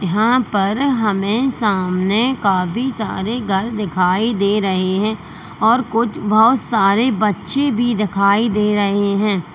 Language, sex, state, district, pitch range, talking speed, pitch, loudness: Hindi, female, Uttar Pradesh, Lalitpur, 195-230 Hz, 130 wpm, 210 Hz, -16 LUFS